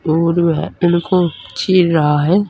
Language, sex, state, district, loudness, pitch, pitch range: Hindi, male, Uttar Pradesh, Saharanpur, -15 LUFS, 170 Hz, 160-180 Hz